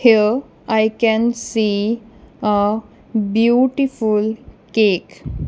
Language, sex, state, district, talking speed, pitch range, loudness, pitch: English, female, Punjab, Kapurthala, 75 wpm, 210-235 Hz, -18 LUFS, 220 Hz